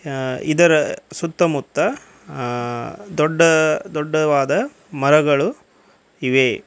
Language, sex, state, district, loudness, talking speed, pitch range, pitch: Kannada, male, Karnataka, Koppal, -18 LUFS, 70 wpm, 135-165 Hz, 150 Hz